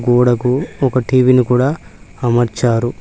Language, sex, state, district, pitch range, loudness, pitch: Telugu, male, Telangana, Mahabubabad, 120-130 Hz, -15 LUFS, 125 Hz